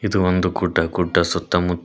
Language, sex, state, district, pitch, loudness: Kannada, male, Karnataka, Koppal, 90 Hz, -20 LUFS